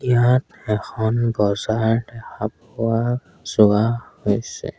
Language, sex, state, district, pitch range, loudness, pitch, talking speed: Assamese, male, Assam, Sonitpur, 105-120 Hz, -21 LUFS, 115 Hz, 90 wpm